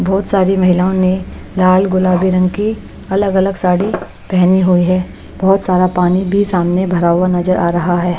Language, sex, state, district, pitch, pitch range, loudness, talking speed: Hindi, female, Chhattisgarh, Raipur, 185 Hz, 180-190 Hz, -14 LUFS, 185 wpm